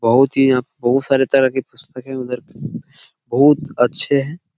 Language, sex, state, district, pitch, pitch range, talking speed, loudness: Hindi, male, Bihar, Jamui, 135 Hz, 125-140 Hz, 170 wpm, -17 LUFS